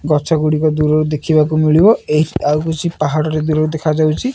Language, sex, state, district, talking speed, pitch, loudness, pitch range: Odia, male, Odisha, Nuapada, 180 wpm, 155 Hz, -15 LUFS, 155-160 Hz